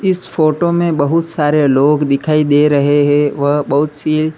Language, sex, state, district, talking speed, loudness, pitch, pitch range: Hindi, male, Uttar Pradesh, Lalitpur, 180 wpm, -13 LUFS, 150 Hz, 145-155 Hz